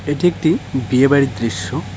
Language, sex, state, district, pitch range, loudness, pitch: Bengali, male, West Bengal, Cooch Behar, 120-145 Hz, -17 LUFS, 135 Hz